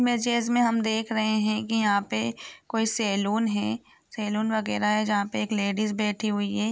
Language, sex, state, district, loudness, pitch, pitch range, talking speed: Hindi, female, Jharkhand, Jamtara, -26 LUFS, 215 Hz, 205-225 Hz, 180 wpm